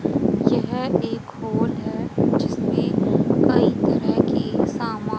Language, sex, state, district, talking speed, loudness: Hindi, female, Haryana, Charkhi Dadri, 105 wpm, -21 LUFS